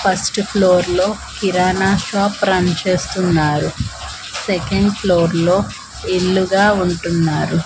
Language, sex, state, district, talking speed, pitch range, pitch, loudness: Telugu, female, Andhra Pradesh, Manyam, 95 wpm, 175-200 Hz, 185 Hz, -16 LUFS